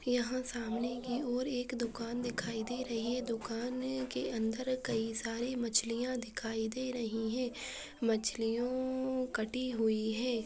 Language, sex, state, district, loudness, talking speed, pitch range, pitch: Hindi, female, Chhattisgarh, Balrampur, -36 LUFS, 140 wpm, 230-255 Hz, 240 Hz